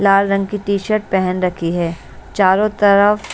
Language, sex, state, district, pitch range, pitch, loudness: Hindi, female, Bihar, West Champaran, 185-205 Hz, 200 Hz, -16 LUFS